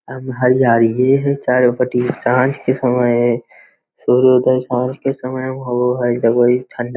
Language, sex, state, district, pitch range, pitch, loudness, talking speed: Hindi, male, Bihar, Lakhisarai, 120-130 Hz, 125 Hz, -15 LUFS, 165 wpm